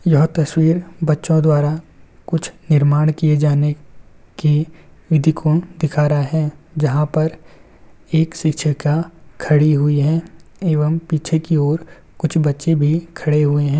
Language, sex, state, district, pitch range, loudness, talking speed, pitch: Hindi, male, Uttar Pradesh, Varanasi, 150-160 Hz, -17 LUFS, 135 wpm, 155 Hz